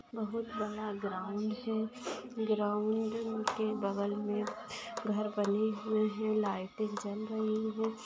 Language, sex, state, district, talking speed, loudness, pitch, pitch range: Hindi, female, Bihar, Lakhisarai, 120 wpm, -35 LUFS, 215 Hz, 210-220 Hz